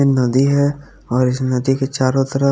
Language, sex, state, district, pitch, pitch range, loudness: Hindi, female, Haryana, Charkhi Dadri, 135 Hz, 130-140 Hz, -17 LUFS